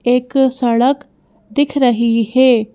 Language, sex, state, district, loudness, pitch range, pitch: Hindi, female, Madhya Pradesh, Bhopal, -14 LUFS, 230-265 Hz, 250 Hz